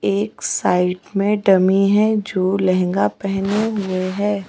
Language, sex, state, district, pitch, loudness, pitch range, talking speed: Hindi, female, Madhya Pradesh, Bhopal, 195 Hz, -18 LUFS, 185-205 Hz, 135 wpm